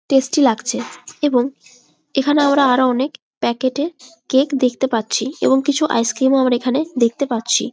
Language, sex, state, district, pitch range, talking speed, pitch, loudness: Bengali, female, West Bengal, Jalpaiguri, 245-285 Hz, 165 wpm, 265 Hz, -17 LUFS